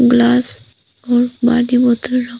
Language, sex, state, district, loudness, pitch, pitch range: Hindi, female, Arunachal Pradesh, Papum Pare, -14 LUFS, 245 Hz, 240-245 Hz